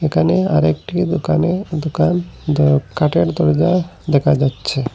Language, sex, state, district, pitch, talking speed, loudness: Bengali, male, Assam, Hailakandi, 145 Hz, 110 wpm, -17 LUFS